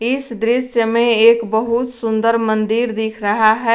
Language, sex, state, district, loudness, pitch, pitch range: Hindi, female, Jharkhand, Garhwa, -16 LUFS, 230 Hz, 220-235 Hz